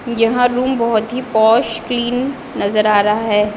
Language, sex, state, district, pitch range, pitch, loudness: Hindi, female, Maharashtra, Gondia, 215-245 Hz, 230 Hz, -15 LUFS